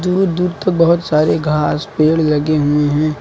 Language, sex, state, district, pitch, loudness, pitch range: Hindi, male, Uttar Pradesh, Lucknow, 155 Hz, -15 LUFS, 150-175 Hz